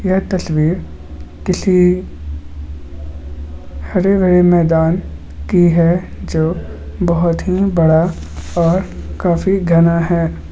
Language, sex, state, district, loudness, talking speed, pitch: Hindi, male, Bihar, Gaya, -15 LUFS, 85 wpm, 165 Hz